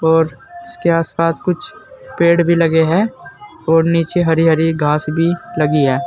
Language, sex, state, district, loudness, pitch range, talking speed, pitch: Hindi, male, Uttar Pradesh, Saharanpur, -15 LUFS, 160-180 Hz, 160 wpm, 165 Hz